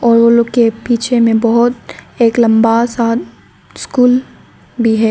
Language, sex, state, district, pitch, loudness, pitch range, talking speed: Hindi, female, Arunachal Pradesh, Lower Dibang Valley, 235 Hz, -12 LUFS, 230-240 Hz, 150 wpm